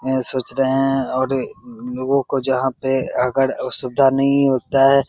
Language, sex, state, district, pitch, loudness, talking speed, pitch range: Maithili, male, Bihar, Begusarai, 135 Hz, -19 LUFS, 200 wpm, 130-135 Hz